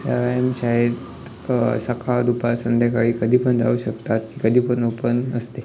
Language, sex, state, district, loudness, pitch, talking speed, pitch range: Marathi, male, Maharashtra, Sindhudurg, -20 LUFS, 120 Hz, 150 wpm, 120-125 Hz